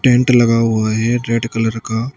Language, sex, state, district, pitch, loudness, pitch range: Hindi, male, Uttar Pradesh, Shamli, 115 Hz, -15 LUFS, 115-120 Hz